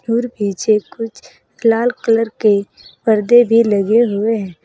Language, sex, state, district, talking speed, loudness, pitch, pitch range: Hindi, female, Uttar Pradesh, Saharanpur, 140 wpm, -15 LUFS, 225 Hz, 205-230 Hz